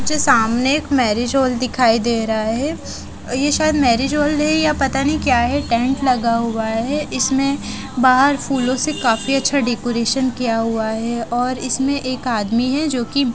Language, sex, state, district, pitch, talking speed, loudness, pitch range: Hindi, female, Haryana, Jhajjar, 255 Hz, 175 wpm, -17 LUFS, 235-275 Hz